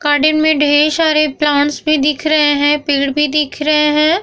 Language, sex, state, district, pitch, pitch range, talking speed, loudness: Hindi, female, Bihar, Vaishali, 300 Hz, 290-305 Hz, 200 wpm, -13 LUFS